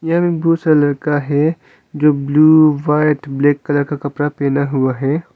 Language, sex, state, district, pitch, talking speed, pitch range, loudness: Hindi, male, Arunachal Pradesh, Longding, 145 Hz, 155 wpm, 140-155 Hz, -15 LUFS